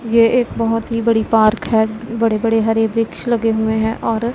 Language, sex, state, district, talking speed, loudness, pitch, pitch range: Hindi, female, Punjab, Pathankot, 205 wpm, -16 LUFS, 225 Hz, 220-230 Hz